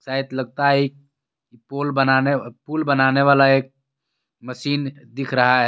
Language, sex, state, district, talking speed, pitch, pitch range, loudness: Hindi, male, Jharkhand, Garhwa, 150 wpm, 135 Hz, 130-140 Hz, -19 LUFS